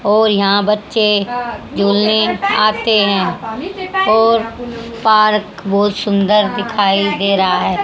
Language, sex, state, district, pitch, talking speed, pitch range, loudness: Hindi, female, Haryana, Jhajjar, 210 Hz, 105 wpm, 200-225 Hz, -14 LUFS